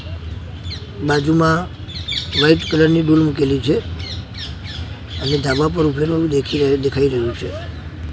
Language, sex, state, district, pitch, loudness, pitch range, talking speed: Gujarati, male, Gujarat, Gandhinagar, 130 Hz, -17 LUFS, 90-150 Hz, 120 wpm